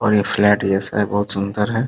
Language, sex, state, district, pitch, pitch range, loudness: Hindi, male, Bihar, Muzaffarpur, 105 Hz, 100-105 Hz, -18 LUFS